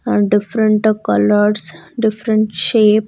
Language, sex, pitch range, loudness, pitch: English, female, 200-215 Hz, -15 LUFS, 210 Hz